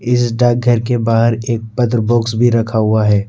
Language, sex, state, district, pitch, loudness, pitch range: Hindi, male, Jharkhand, Deoghar, 115 Hz, -14 LUFS, 110-120 Hz